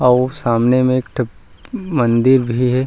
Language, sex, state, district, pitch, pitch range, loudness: Chhattisgarhi, male, Chhattisgarh, Rajnandgaon, 125 Hz, 120-130 Hz, -16 LUFS